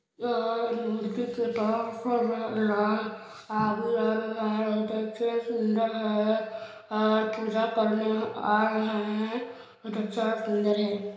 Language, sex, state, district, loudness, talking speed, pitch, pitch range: Hindi, male, Chhattisgarh, Balrampur, -28 LUFS, 75 wpm, 220 Hz, 215-225 Hz